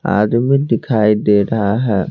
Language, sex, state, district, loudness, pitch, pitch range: Hindi, male, Bihar, Patna, -15 LUFS, 110 Hz, 105-120 Hz